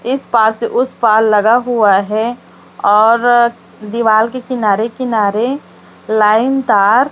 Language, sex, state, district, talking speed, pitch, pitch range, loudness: Hindi, female, Chhattisgarh, Raipur, 125 wpm, 225 Hz, 215-245 Hz, -13 LUFS